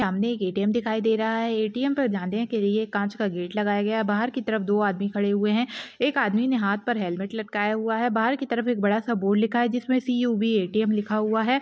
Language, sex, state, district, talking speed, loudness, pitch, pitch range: Hindi, female, Chhattisgarh, Rajnandgaon, 275 wpm, -25 LUFS, 220 Hz, 205-235 Hz